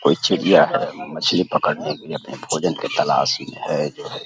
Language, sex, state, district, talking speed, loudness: Hindi, male, Uttar Pradesh, Deoria, 225 wpm, -20 LUFS